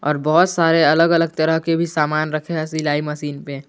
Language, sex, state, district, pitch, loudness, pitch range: Hindi, male, Jharkhand, Garhwa, 155 Hz, -18 LUFS, 150-165 Hz